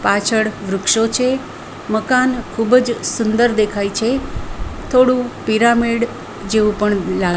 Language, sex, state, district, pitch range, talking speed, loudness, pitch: Gujarati, female, Gujarat, Valsad, 210-250 Hz, 120 wpm, -16 LUFS, 225 Hz